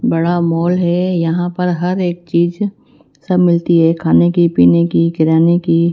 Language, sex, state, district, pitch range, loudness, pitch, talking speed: Hindi, female, Bihar, Katihar, 165-175 Hz, -14 LUFS, 170 Hz, 170 wpm